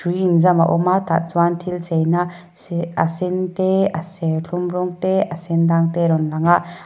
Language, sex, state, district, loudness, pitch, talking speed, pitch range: Mizo, female, Mizoram, Aizawl, -19 LUFS, 175 Hz, 220 wpm, 165-180 Hz